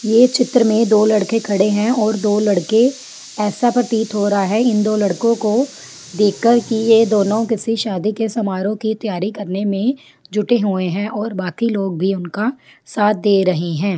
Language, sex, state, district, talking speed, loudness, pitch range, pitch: Hindi, female, Jharkhand, Sahebganj, 190 wpm, -17 LUFS, 200-225 Hz, 215 Hz